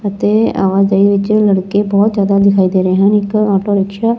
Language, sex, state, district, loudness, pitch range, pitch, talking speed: Punjabi, female, Punjab, Fazilka, -12 LUFS, 195-210 Hz, 200 Hz, 200 wpm